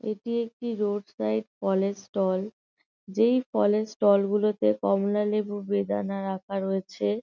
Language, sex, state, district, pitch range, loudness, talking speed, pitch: Bengali, female, West Bengal, North 24 Parganas, 190-210 Hz, -27 LUFS, 115 wpm, 200 Hz